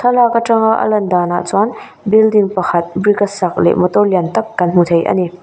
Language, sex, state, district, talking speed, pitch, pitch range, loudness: Mizo, female, Mizoram, Aizawl, 230 wpm, 200 Hz, 180-220 Hz, -13 LUFS